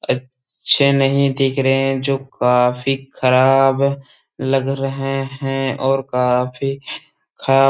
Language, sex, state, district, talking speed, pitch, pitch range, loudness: Hindi, male, Uttar Pradesh, Jalaun, 115 wpm, 135 Hz, 130-135 Hz, -17 LUFS